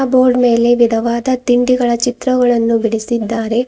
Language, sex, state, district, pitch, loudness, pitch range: Kannada, female, Karnataka, Bidar, 240 Hz, -13 LUFS, 230-250 Hz